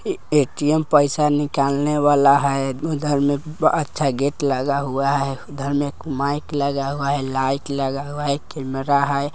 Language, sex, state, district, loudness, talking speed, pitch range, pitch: Hindi, male, Bihar, Vaishali, -20 LUFS, 160 wpm, 140-145 Hz, 140 Hz